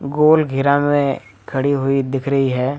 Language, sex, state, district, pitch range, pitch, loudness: Hindi, male, Jharkhand, Jamtara, 135-145 Hz, 140 Hz, -17 LUFS